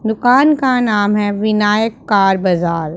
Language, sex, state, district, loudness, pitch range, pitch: Hindi, female, Punjab, Pathankot, -14 LUFS, 195-245 Hz, 210 Hz